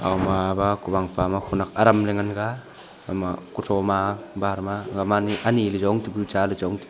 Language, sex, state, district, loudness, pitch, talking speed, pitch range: Wancho, male, Arunachal Pradesh, Longding, -24 LUFS, 100 Hz, 180 wpm, 95-105 Hz